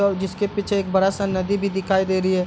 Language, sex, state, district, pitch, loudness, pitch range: Hindi, male, Bihar, Darbhanga, 195 Hz, -21 LUFS, 190-200 Hz